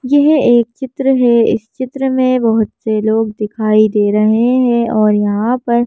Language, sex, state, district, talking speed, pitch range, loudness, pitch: Hindi, female, Madhya Pradesh, Bhopal, 175 wpm, 215-255 Hz, -13 LUFS, 235 Hz